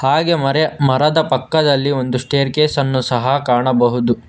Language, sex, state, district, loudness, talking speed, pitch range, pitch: Kannada, male, Karnataka, Bangalore, -15 LUFS, 125 wpm, 130-150 Hz, 135 Hz